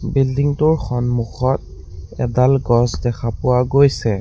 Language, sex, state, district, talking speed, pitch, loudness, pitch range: Assamese, male, Assam, Sonitpur, 100 wpm, 125 Hz, -17 LUFS, 115-135 Hz